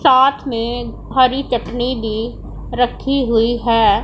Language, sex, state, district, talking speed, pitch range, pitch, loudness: Hindi, female, Punjab, Pathankot, 120 wpm, 230-260 Hz, 240 Hz, -17 LUFS